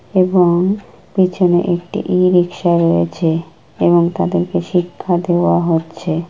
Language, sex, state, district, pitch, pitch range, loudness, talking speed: Bengali, female, West Bengal, Kolkata, 175 Hz, 165-180 Hz, -15 LUFS, 95 wpm